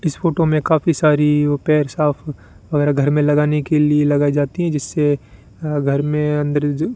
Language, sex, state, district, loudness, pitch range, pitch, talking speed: Hindi, male, Rajasthan, Bikaner, -17 LUFS, 145-155 Hz, 150 Hz, 200 wpm